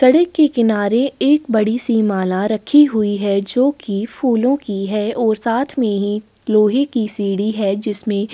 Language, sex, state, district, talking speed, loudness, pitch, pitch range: Hindi, female, Chhattisgarh, Sukma, 175 wpm, -17 LUFS, 220 Hz, 205-255 Hz